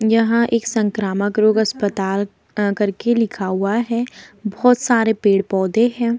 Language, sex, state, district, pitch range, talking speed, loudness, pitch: Hindi, female, Bihar, Vaishali, 200-235 Hz, 135 wpm, -18 LUFS, 215 Hz